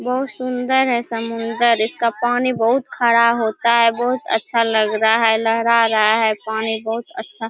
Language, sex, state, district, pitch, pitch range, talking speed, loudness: Hindi, female, Chhattisgarh, Korba, 230 Hz, 225-240 Hz, 170 wpm, -17 LUFS